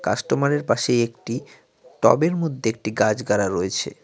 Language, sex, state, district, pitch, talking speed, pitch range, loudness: Bengali, male, West Bengal, Cooch Behar, 115 Hz, 135 wpm, 110-145 Hz, -22 LUFS